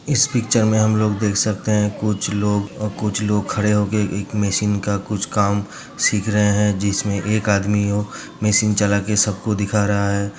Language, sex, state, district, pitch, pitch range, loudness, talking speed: Hindi, male, Uttar Pradesh, Hamirpur, 105 Hz, 100-105 Hz, -19 LUFS, 190 wpm